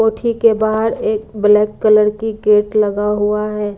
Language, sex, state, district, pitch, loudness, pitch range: Hindi, female, Punjab, Kapurthala, 215 Hz, -15 LUFS, 210-220 Hz